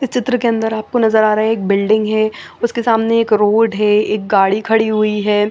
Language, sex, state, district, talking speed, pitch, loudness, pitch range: Hindi, female, Chandigarh, Chandigarh, 230 wpm, 215 Hz, -15 LUFS, 210-225 Hz